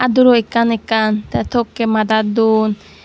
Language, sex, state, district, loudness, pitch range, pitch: Chakma, female, Tripura, Dhalai, -15 LUFS, 215-235 Hz, 225 Hz